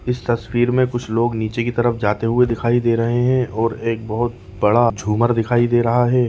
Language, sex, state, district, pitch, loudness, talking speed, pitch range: Hindi, male, Chhattisgarh, Raigarh, 120 Hz, -18 LUFS, 220 wpm, 115-120 Hz